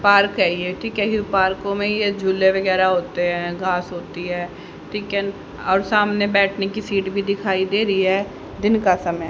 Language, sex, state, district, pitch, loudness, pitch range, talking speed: Hindi, female, Haryana, Rohtak, 195 Hz, -20 LUFS, 180-200 Hz, 205 wpm